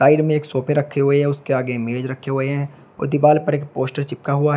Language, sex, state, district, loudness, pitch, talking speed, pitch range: Hindi, male, Uttar Pradesh, Shamli, -20 LUFS, 140 Hz, 275 wpm, 130-145 Hz